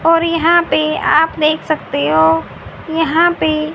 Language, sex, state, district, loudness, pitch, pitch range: Hindi, female, Haryana, Rohtak, -14 LUFS, 315 Hz, 305-330 Hz